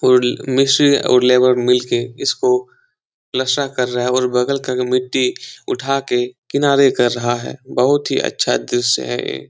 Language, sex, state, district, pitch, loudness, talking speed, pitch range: Hindi, male, Bihar, Jahanabad, 125 Hz, -16 LUFS, 175 wpm, 125-135 Hz